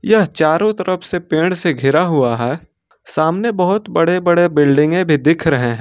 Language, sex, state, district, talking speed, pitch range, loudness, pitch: Hindi, male, Jharkhand, Ranchi, 185 wpm, 150-185 Hz, -15 LUFS, 170 Hz